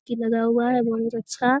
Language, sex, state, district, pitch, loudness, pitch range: Hindi, female, Bihar, Jamui, 235 Hz, -23 LUFS, 230-245 Hz